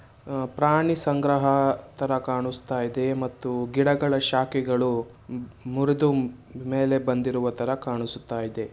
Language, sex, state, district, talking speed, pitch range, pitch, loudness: Kannada, male, Karnataka, Shimoga, 95 wpm, 125-135 Hz, 130 Hz, -25 LUFS